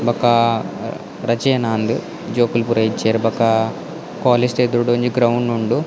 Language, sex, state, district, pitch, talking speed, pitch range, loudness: Tulu, male, Karnataka, Dakshina Kannada, 115 Hz, 110 wpm, 115-120 Hz, -18 LUFS